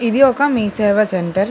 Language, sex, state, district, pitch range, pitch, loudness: Telugu, female, Telangana, Hyderabad, 200-250 Hz, 215 Hz, -15 LUFS